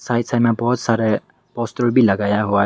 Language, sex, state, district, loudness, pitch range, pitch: Hindi, male, Meghalaya, West Garo Hills, -18 LUFS, 105-120 Hz, 115 Hz